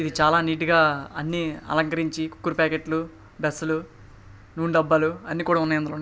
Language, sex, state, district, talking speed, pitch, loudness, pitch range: Telugu, male, Andhra Pradesh, Srikakulam, 160 wpm, 160 Hz, -24 LUFS, 150-165 Hz